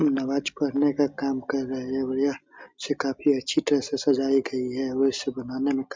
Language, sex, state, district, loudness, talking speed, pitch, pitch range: Hindi, male, Bihar, Supaul, -26 LUFS, 210 wpm, 135 Hz, 130-140 Hz